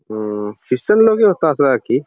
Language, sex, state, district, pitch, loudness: Bengali, male, West Bengal, Jalpaiguri, 140 Hz, -15 LUFS